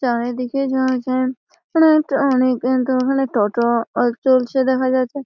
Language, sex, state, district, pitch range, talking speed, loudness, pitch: Bengali, female, West Bengal, Malda, 250-270 Hz, 125 wpm, -18 LUFS, 260 Hz